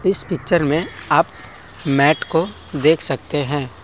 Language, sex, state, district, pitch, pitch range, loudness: Hindi, male, Assam, Kamrup Metropolitan, 150 Hz, 140-170 Hz, -18 LUFS